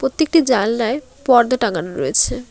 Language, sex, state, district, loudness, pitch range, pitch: Bengali, female, West Bengal, Alipurduar, -17 LUFS, 240-270 Hz, 255 Hz